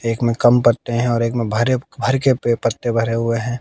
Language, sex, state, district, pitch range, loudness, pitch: Hindi, male, Haryana, Jhajjar, 115-120 Hz, -18 LUFS, 120 Hz